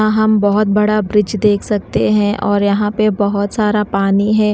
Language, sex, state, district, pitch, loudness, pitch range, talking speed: Hindi, female, Odisha, Nuapada, 210 Hz, -14 LUFS, 205-215 Hz, 200 wpm